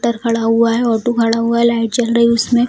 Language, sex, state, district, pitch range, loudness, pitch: Hindi, female, Bihar, Jamui, 230-235 Hz, -14 LUFS, 235 Hz